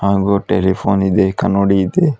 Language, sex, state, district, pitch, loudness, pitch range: Kannada, female, Karnataka, Bidar, 100 Hz, -15 LUFS, 95-100 Hz